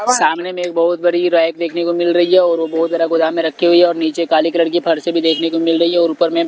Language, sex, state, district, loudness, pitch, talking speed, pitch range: Hindi, male, Delhi, New Delhi, -15 LUFS, 170 Hz, 325 wpm, 165-175 Hz